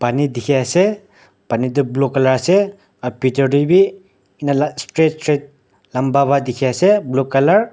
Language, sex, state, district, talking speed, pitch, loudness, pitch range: Nagamese, male, Nagaland, Dimapur, 170 wpm, 140 Hz, -16 LUFS, 130-160 Hz